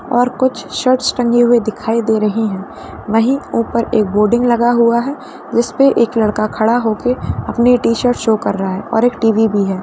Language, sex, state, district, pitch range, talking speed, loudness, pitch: Hindi, female, Rajasthan, Churu, 220-245 Hz, 195 wpm, -14 LUFS, 235 Hz